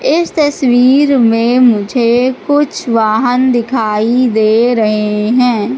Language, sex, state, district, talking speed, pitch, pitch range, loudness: Hindi, female, Madhya Pradesh, Katni, 105 wpm, 245 Hz, 220-260 Hz, -11 LUFS